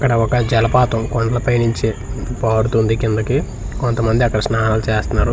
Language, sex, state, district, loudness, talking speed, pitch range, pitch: Telugu, male, Andhra Pradesh, Manyam, -17 LUFS, 125 wpm, 110-120 Hz, 115 Hz